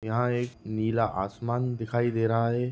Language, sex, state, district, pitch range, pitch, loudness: Hindi, male, Bihar, Jahanabad, 115-120 Hz, 115 Hz, -28 LUFS